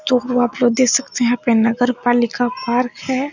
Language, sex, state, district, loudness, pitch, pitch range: Hindi, female, Uttar Pradesh, Etah, -17 LUFS, 245 Hz, 240-255 Hz